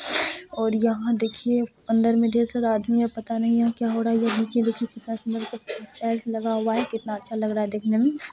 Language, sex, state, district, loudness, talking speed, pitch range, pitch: Maithili, female, Bihar, Purnia, -23 LUFS, 230 wpm, 225-235 Hz, 230 Hz